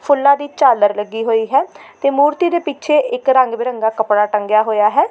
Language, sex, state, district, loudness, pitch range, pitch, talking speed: Punjabi, female, Delhi, New Delhi, -15 LUFS, 220-285 Hz, 250 Hz, 200 wpm